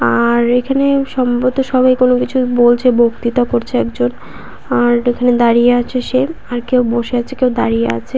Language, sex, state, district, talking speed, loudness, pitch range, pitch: Bengali, female, West Bengal, Paschim Medinipur, 155 wpm, -14 LUFS, 235-255 Hz, 245 Hz